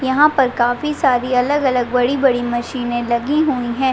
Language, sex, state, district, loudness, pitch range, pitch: Hindi, female, Uttar Pradesh, Deoria, -17 LUFS, 245-275 Hz, 255 Hz